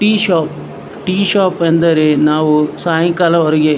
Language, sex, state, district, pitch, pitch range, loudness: Kannada, male, Karnataka, Dharwad, 165 Hz, 155-185 Hz, -13 LUFS